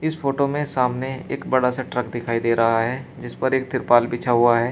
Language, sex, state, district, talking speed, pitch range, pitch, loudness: Hindi, male, Uttar Pradesh, Shamli, 240 wpm, 120-130 Hz, 125 Hz, -21 LUFS